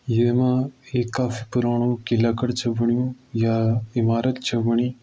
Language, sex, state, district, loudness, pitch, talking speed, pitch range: Garhwali, male, Uttarakhand, Uttarkashi, -22 LUFS, 120 Hz, 145 wpm, 115-125 Hz